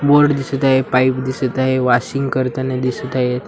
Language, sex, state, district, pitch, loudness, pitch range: Marathi, male, Maharashtra, Washim, 130 Hz, -17 LUFS, 130-135 Hz